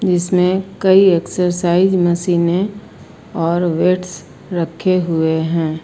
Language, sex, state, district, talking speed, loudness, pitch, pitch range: Hindi, female, Uttar Pradesh, Lucknow, 105 wpm, -16 LUFS, 180 Hz, 170-185 Hz